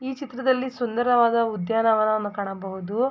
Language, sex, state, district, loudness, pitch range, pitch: Kannada, female, Karnataka, Mysore, -23 LUFS, 210-255 Hz, 230 Hz